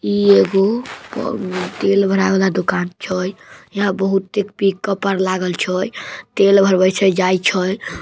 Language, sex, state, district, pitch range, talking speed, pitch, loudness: Magahi, male, Bihar, Samastipur, 185-200 Hz, 150 wpm, 190 Hz, -17 LUFS